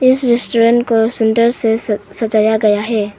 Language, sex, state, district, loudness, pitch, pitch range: Hindi, female, Arunachal Pradesh, Papum Pare, -14 LUFS, 225 Hz, 215-235 Hz